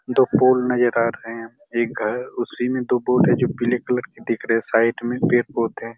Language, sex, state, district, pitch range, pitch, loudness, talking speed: Hindi, male, Chhattisgarh, Raigarh, 115-125 Hz, 120 Hz, -20 LUFS, 230 wpm